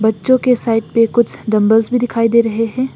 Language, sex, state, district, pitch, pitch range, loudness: Hindi, female, Assam, Hailakandi, 230 Hz, 220-245 Hz, -14 LUFS